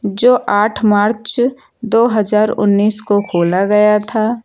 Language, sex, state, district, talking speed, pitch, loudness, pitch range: Hindi, female, Uttar Pradesh, Lucknow, 135 wpm, 210 Hz, -13 LUFS, 205-225 Hz